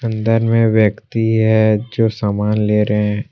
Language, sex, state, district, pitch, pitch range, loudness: Hindi, male, Jharkhand, Deoghar, 110 Hz, 105-115 Hz, -15 LUFS